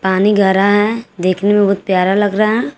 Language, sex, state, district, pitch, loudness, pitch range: Hindi, female, Jharkhand, Garhwa, 200 Hz, -13 LUFS, 190-210 Hz